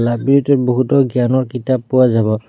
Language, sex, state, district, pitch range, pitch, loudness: Assamese, male, Assam, Kamrup Metropolitan, 120-130 Hz, 130 Hz, -15 LUFS